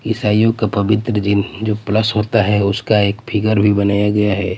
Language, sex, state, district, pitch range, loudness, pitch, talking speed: Hindi, male, Bihar, Patna, 100-110 Hz, -16 LUFS, 105 Hz, 195 wpm